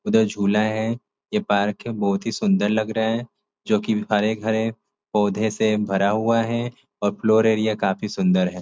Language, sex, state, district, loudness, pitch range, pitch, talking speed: Hindi, male, Uttar Pradesh, Ghazipur, -22 LUFS, 105-110 Hz, 110 Hz, 180 wpm